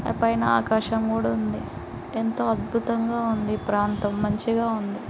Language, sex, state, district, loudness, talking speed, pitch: Telugu, female, Andhra Pradesh, Srikakulam, -25 LUFS, 140 wpm, 215 Hz